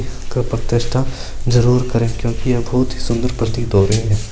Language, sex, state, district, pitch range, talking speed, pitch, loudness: Marwari, male, Rajasthan, Churu, 115-125 Hz, 140 wpm, 120 Hz, -18 LUFS